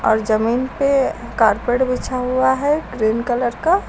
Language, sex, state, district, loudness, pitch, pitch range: Hindi, female, Uttar Pradesh, Lucknow, -18 LUFS, 250 Hz, 230-260 Hz